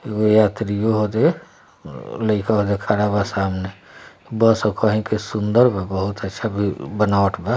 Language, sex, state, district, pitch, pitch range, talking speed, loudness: Bhojpuri, male, Bihar, East Champaran, 105 Hz, 100-110 Hz, 160 wpm, -19 LUFS